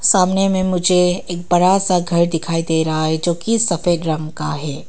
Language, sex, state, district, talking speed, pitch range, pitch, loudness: Hindi, female, Arunachal Pradesh, Papum Pare, 195 wpm, 160-180 Hz, 175 Hz, -17 LUFS